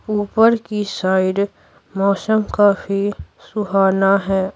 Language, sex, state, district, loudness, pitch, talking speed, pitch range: Hindi, female, Bihar, Patna, -17 LUFS, 200 Hz, 90 wpm, 195-210 Hz